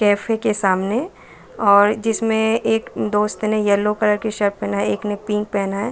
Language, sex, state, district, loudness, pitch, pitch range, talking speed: Hindi, female, Bihar, Saran, -19 LUFS, 210 Hz, 205-220 Hz, 190 wpm